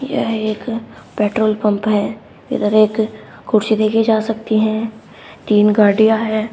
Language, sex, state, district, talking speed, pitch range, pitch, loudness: Hindi, female, Haryana, Rohtak, 140 wpm, 215-220 Hz, 215 Hz, -16 LUFS